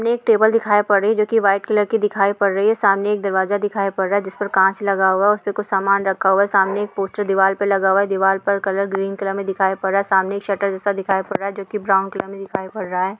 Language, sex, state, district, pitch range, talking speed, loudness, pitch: Hindi, female, Bihar, Darbhanga, 195-205 Hz, 300 wpm, -18 LUFS, 200 Hz